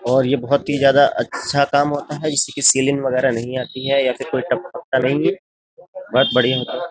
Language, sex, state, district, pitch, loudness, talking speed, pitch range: Hindi, male, Uttar Pradesh, Jyotiba Phule Nagar, 140 Hz, -18 LUFS, 225 wpm, 130-145 Hz